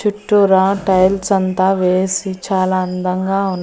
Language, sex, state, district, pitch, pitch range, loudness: Telugu, female, Andhra Pradesh, Annamaya, 190 Hz, 185-195 Hz, -15 LUFS